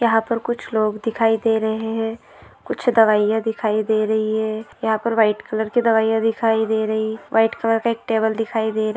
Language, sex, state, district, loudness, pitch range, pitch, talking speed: Hindi, female, Maharashtra, Nagpur, -20 LUFS, 220-225 Hz, 220 Hz, 205 wpm